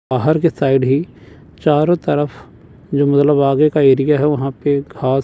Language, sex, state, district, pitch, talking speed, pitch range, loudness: Hindi, male, Chandigarh, Chandigarh, 140 Hz, 170 wpm, 135-150 Hz, -15 LUFS